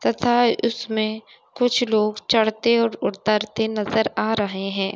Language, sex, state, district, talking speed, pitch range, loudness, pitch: Hindi, female, Uttar Pradesh, Gorakhpur, 135 wpm, 210-230 Hz, -21 LUFS, 220 Hz